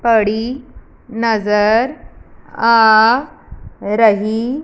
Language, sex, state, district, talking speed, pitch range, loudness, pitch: Hindi, female, Punjab, Fazilka, 50 wpm, 220-250 Hz, -14 LUFS, 225 Hz